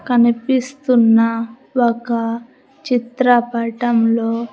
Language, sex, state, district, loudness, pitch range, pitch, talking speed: Telugu, female, Andhra Pradesh, Sri Satya Sai, -17 LUFS, 230-245 Hz, 235 Hz, 55 wpm